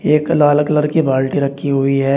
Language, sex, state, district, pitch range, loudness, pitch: Hindi, male, Uttar Pradesh, Shamli, 135-150 Hz, -15 LUFS, 145 Hz